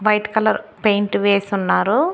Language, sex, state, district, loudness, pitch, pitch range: Telugu, female, Andhra Pradesh, Annamaya, -18 LUFS, 210 Hz, 200-215 Hz